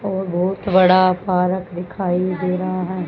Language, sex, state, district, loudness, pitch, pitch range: Hindi, female, Haryana, Jhajjar, -18 LUFS, 185 Hz, 180-185 Hz